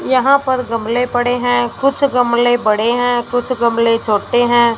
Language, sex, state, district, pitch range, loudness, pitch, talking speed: Hindi, female, Punjab, Fazilka, 235-250 Hz, -15 LUFS, 245 Hz, 165 wpm